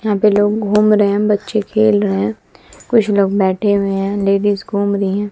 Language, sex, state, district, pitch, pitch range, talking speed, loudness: Hindi, female, Bihar, West Champaran, 205 Hz, 200-210 Hz, 215 wpm, -15 LUFS